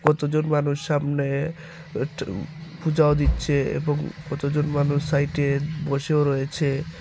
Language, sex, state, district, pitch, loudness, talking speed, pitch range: Bengali, male, Tripura, Unakoti, 145 Hz, -24 LUFS, 120 wpm, 140-155 Hz